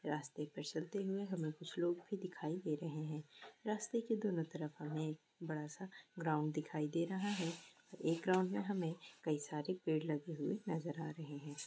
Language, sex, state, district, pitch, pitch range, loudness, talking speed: Hindi, female, Bihar, East Champaran, 165 Hz, 155-185 Hz, -42 LUFS, 185 wpm